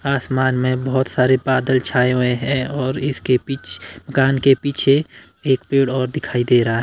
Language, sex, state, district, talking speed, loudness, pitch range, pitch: Hindi, male, Himachal Pradesh, Shimla, 175 wpm, -18 LUFS, 125-135 Hz, 130 Hz